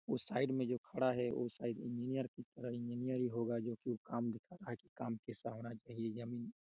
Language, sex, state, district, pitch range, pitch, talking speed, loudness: Hindi, male, Chhattisgarh, Raigarh, 115-125 Hz, 120 Hz, 220 wpm, -42 LUFS